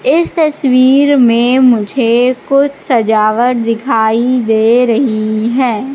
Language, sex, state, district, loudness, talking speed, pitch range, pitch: Hindi, female, Madhya Pradesh, Katni, -11 LUFS, 100 wpm, 230-270 Hz, 245 Hz